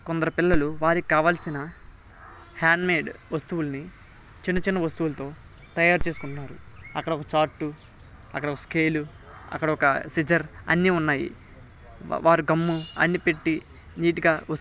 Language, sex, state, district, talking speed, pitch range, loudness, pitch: Telugu, male, Telangana, Nalgonda, 125 wpm, 150-170 Hz, -25 LUFS, 160 Hz